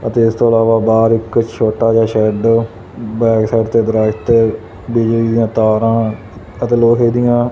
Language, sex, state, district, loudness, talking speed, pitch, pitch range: Punjabi, male, Punjab, Fazilka, -13 LUFS, 160 wpm, 115 Hz, 110-115 Hz